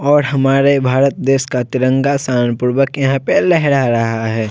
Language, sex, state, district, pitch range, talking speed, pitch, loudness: Hindi, male, Bihar, Vaishali, 125-140 Hz, 175 wpm, 135 Hz, -14 LUFS